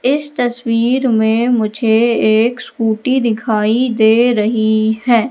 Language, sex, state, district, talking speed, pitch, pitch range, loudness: Hindi, female, Madhya Pradesh, Katni, 115 wpm, 230 Hz, 220-245 Hz, -14 LUFS